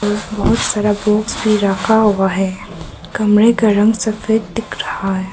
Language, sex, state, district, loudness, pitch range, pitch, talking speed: Hindi, male, Arunachal Pradesh, Papum Pare, -15 LUFS, 195-220 Hz, 210 Hz, 155 wpm